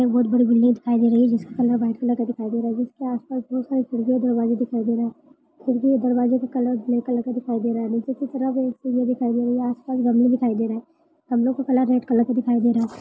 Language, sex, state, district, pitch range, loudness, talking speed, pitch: Hindi, male, Maharashtra, Solapur, 235-255 Hz, -22 LUFS, 265 wpm, 245 Hz